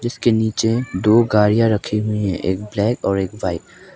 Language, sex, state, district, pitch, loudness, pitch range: Hindi, male, Arunachal Pradesh, Papum Pare, 105 Hz, -18 LUFS, 100-115 Hz